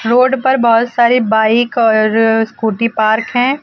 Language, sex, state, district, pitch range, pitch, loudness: Hindi, female, Uttar Pradesh, Lucknow, 220-245 Hz, 230 Hz, -12 LUFS